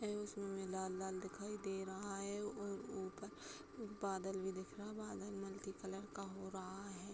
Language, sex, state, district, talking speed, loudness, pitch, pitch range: Hindi, female, Uttar Pradesh, Hamirpur, 170 wpm, -47 LUFS, 195 Hz, 190-205 Hz